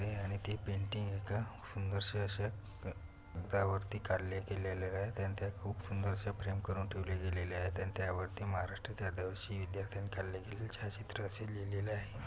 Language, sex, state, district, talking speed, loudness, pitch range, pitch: Marathi, male, Maharashtra, Pune, 150 wpm, -40 LUFS, 95-100 Hz, 100 Hz